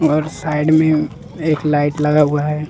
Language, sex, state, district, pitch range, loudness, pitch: Hindi, male, Jharkhand, Deoghar, 150-155 Hz, -16 LUFS, 150 Hz